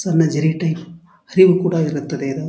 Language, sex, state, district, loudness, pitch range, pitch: Kannada, male, Karnataka, Dharwad, -17 LUFS, 155-175 Hz, 165 Hz